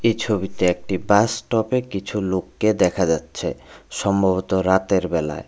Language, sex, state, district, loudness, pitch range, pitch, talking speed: Bengali, male, Tripura, West Tripura, -21 LUFS, 95-105 Hz, 95 Hz, 120 wpm